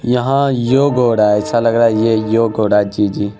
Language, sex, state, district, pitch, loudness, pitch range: Hindi, male, Bihar, Araria, 115 Hz, -14 LUFS, 105-125 Hz